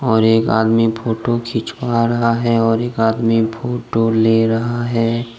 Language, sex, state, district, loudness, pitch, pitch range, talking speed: Hindi, male, Jharkhand, Deoghar, -16 LUFS, 115 Hz, 115-120 Hz, 155 wpm